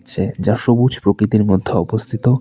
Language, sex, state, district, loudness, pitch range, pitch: Bengali, male, West Bengal, Alipurduar, -16 LUFS, 100-125 Hz, 110 Hz